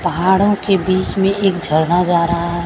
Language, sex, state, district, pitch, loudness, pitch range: Hindi, female, Chhattisgarh, Raipur, 180 Hz, -15 LUFS, 170-195 Hz